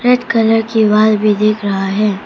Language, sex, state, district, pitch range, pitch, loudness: Hindi, female, Arunachal Pradesh, Papum Pare, 210-225 Hz, 215 Hz, -13 LUFS